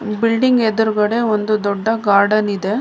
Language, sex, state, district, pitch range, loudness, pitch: Kannada, female, Karnataka, Mysore, 210-225 Hz, -16 LUFS, 215 Hz